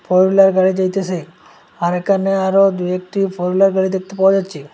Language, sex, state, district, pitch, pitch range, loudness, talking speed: Bengali, male, Assam, Hailakandi, 190 Hz, 180-195 Hz, -16 LUFS, 200 wpm